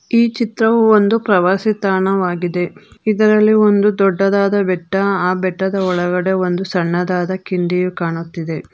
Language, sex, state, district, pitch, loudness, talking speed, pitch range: Kannada, female, Karnataka, Bangalore, 190 Hz, -16 LUFS, 110 wpm, 180-210 Hz